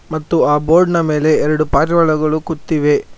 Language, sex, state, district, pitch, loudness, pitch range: Kannada, male, Karnataka, Bangalore, 155 Hz, -14 LUFS, 155-165 Hz